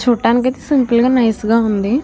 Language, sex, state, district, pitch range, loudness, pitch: Telugu, female, Andhra Pradesh, Krishna, 230-255 Hz, -14 LUFS, 240 Hz